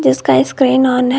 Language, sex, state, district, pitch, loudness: Hindi, female, Jharkhand, Garhwa, 250 Hz, -13 LUFS